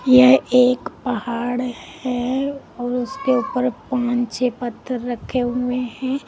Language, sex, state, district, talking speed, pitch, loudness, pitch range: Hindi, female, Uttar Pradesh, Lalitpur, 125 wpm, 250 Hz, -20 LUFS, 245-255 Hz